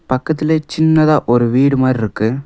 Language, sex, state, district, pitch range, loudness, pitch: Tamil, male, Tamil Nadu, Nilgiris, 120-155 Hz, -14 LUFS, 135 Hz